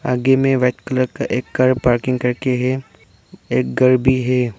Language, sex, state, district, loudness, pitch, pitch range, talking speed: Hindi, male, Arunachal Pradesh, Lower Dibang Valley, -17 LUFS, 125 Hz, 125-130 Hz, 185 wpm